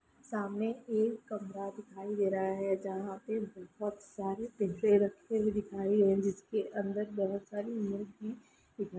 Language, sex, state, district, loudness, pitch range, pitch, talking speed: Hindi, female, Chhattisgarh, Raigarh, -35 LUFS, 195-215 Hz, 205 Hz, 165 wpm